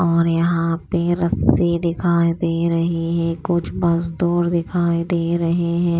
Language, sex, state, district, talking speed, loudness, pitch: Hindi, female, Maharashtra, Washim, 140 wpm, -19 LUFS, 170 Hz